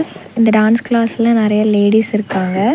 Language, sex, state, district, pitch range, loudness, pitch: Tamil, female, Tamil Nadu, Nilgiris, 210-230 Hz, -14 LUFS, 215 Hz